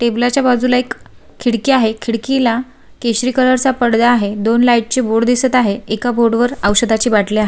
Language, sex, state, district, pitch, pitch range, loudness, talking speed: Marathi, female, Maharashtra, Sindhudurg, 240 Hz, 230-250 Hz, -14 LUFS, 195 wpm